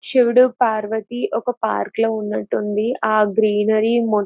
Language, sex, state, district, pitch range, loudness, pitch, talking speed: Telugu, female, Andhra Pradesh, Visakhapatnam, 215-240 Hz, -19 LUFS, 220 Hz, 110 wpm